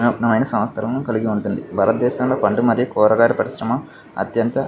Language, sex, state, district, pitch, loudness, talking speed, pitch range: Telugu, male, Andhra Pradesh, Visakhapatnam, 115 Hz, -19 LUFS, 140 wpm, 110-125 Hz